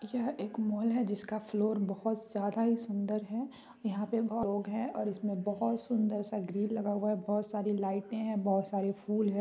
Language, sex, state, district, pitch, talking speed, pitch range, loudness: Hindi, female, Bihar, Muzaffarpur, 210 Hz, 210 wpm, 205-225 Hz, -34 LUFS